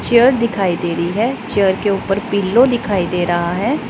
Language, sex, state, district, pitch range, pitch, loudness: Hindi, female, Punjab, Pathankot, 180-235 Hz, 200 Hz, -16 LUFS